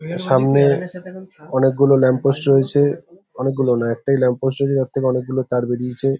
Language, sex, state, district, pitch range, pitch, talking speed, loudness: Bengali, male, West Bengal, Paschim Medinipur, 130-140 Hz, 135 Hz, 155 wpm, -18 LUFS